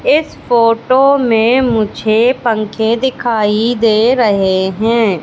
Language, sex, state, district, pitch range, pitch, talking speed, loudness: Hindi, female, Madhya Pradesh, Katni, 215-250 Hz, 230 Hz, 105 wpm, -12 LUFS